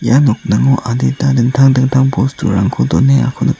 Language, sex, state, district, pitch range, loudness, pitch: Garo, male, Meghalaya, South Garo Hills, 130-135 Hz, -12 LUFS, 135 Hz